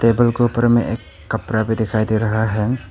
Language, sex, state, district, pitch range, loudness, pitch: Hindi, male, Arunachal Pradesh, Papum Pare, 110-120 Hz, -18 LUFS, 110 Hz